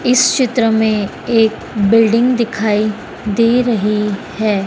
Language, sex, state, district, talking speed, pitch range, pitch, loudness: Hindi, female, Madhya Pradesh, Dhar, 115 wpm, 210-235 Hz, 220 Hz, -14 LUFS